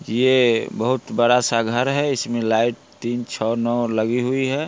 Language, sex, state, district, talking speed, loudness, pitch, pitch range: Hindi, male, Bihar, Muzaffarpur, 165 wpm, -20 LUFS, 120 Hz, 115-130 Hz